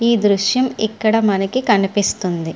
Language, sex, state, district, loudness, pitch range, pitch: Telugu, female, Andhra Pradesh, Srikakulam, -17 LUFS, 195-225 Hz, 205 Hz